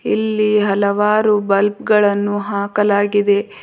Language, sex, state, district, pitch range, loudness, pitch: Kannada, female, Karnataka, Bidar, 200-210 Hz, -16 LUFS, 205 Hz